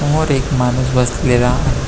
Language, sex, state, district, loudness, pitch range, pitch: Marathi, male, Maharashtra, Pune, -15 LUFS, 125-135 Hz, 130 Hz